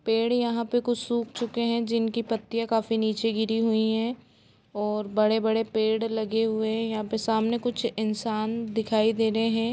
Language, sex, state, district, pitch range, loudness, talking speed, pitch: Hindi, female, Bihar, Gopalganj, 220-230 Hz, -26 LUFS, 180 wpm, 225 Hz